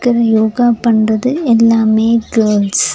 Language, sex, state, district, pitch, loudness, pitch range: Tamil, female, Tamil Nadu, Nilgiris, 230 Hz, -12 LUFS, 220-240 Hz